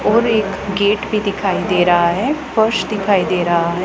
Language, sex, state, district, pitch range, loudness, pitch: Hindi, female, Punjab, Pathankot, 180-215 Hz, -16 LUFS, 200 Hz